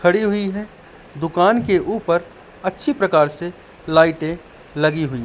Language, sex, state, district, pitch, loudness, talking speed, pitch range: Hindi, male, Madhya Pradesh, Katni, 175 Hz, -19 LUFS, 135 wpm, 160-195 Hz